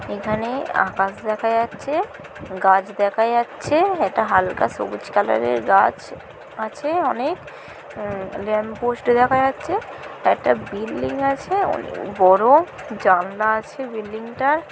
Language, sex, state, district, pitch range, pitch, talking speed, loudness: Bengali, female, West Bengal, Kolkata, 210-280 Hz, 230 Hz, 115 wpm, -20 LUFS